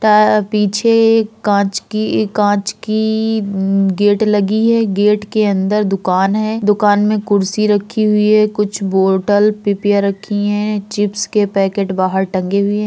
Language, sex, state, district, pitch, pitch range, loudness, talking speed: Hindi, female, Uttar Pradesh, Hamirpur, 205 Hz, 200-215 Hz, -14 LUFS, 145 wpm